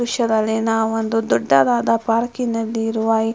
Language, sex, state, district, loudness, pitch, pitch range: Kannada, female, Karnataka, Mysore, -19 LUFS, 225 Hz, 220-230 Hz